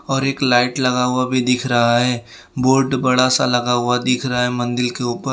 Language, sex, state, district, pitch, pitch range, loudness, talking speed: Hindi, male, Gujarat, Valsad, 125 Hz, 120-130 Hz, -17 LUFS, 225 wpm